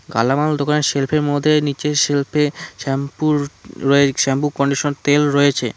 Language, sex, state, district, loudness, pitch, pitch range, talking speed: Bengali, male, West Bengal, Cooch Behar, -17 LUFS, 145 Hz, 140-150 Hz, 125 wpm